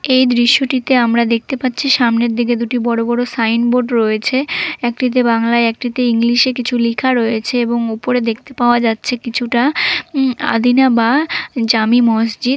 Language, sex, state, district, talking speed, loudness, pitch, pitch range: Bengali, female, West Bengal, Dakshin Dinajpur, 140 wpm, -14 LUFS, 240 Hz, 230-255 Hz